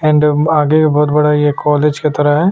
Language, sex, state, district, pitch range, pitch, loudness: Hindi, male, Chhattisgarh, Sukma, 150-155 Hz, 150 Hz, -12 LUFS